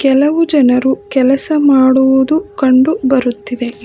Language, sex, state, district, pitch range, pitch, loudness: Kannada, female, Karnataka, Bangalore, 260-285 Hz, 265 Hz, -12 LUFS